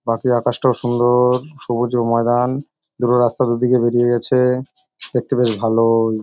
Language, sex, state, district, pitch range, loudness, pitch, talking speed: Bengali, male, West Bengal, North 24 Parganas, 120-125 Hz, -17 LUFS, 120 Hz, 145 wpm